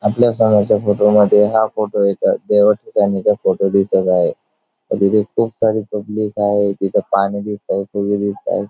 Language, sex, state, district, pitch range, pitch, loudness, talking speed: Marathi, male, Maharashtra, Dhule, 100-105 Hz, 105 Hz, -16 LUFS, 150 wpm